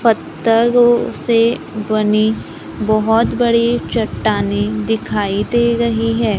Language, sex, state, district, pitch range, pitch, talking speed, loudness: Hindi, female, Maharashtra, Gondia, 205-235 Hz, 225 Hz, 95 wpm, -16 LUFS